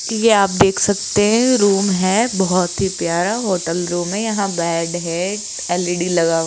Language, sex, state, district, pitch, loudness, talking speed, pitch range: Hindi, female, Rajasthan, Jaipur, 185 Hz, -17 LUFS, 185 wpm, 175-205 Hz